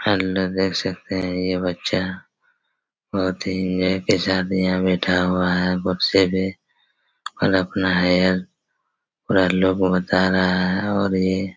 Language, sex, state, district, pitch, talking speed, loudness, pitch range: Hindi, male, Chhattisgarh, Raigarh, 95 Hz, 145 wpm, -20 LUFS, 90-95 Hz